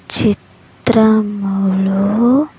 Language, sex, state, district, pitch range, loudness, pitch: Telugu, female, Andhra Pradesh, Sri Satya Sai, 195-230 Hz, -14 LUFS, 205 Hz